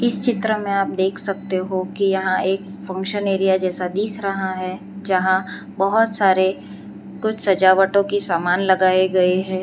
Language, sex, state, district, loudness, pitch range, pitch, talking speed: Hindi, female, Gujarat, Valsad, -19 LUFS, 185-200 Hz, 190 Hz, 155 wpm